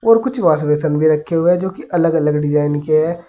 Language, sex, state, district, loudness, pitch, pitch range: Hindi, male, Uttar Pradesh, Saharanpur, -16 LUFS, 155 Hz, 150-175 Hz